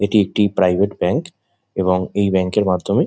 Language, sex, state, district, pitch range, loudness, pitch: Bengali, male, West Bengal, Jhargram, 90-105 Hz, -18 LUFS, 100 Hz